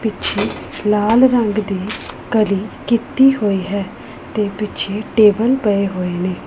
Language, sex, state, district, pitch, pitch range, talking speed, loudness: Punjabi, female, Punjab, Pathankot, 210 Hz, 200-225 Hz, 130 wpm, -17 LUFS